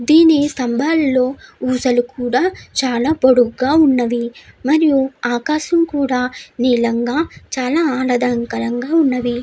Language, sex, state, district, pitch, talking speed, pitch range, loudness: Telugu, female, Andhra Pradesh, Chittoor, 255 Hz, 95 wpm, 245-300 Hz, -16 LUFS